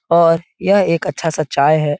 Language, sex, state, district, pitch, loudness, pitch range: Hindi, male, Bihar, Supaul, 165 Hz, -15 LUFS, 150-170 Hz